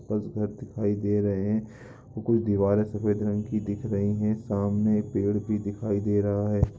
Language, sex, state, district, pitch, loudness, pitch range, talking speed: Hindi, male, Bihar, Darbhanga, 105 Hz, -27 LUFS, 100-110 Hz, 195 wpm